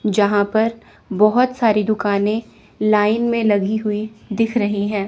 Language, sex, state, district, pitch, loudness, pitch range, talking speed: Hindi, female, Chandigarh, Chandigarh, 215 Hz, -18 LUFS, 205-225 Hz, 140 wpm